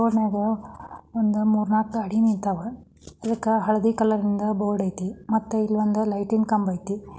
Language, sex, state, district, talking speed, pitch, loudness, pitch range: Kannada, female, Karnataka, Dharwad, 65 wpm, 215 Hz, -24 LUFS, 205-220 Hz